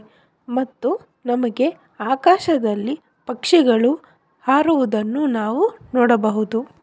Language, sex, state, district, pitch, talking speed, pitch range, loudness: Kannada, female, Karnataka, Bellary, 255 Hz, 60 wpm, 225-290 Hz, -19 LUFS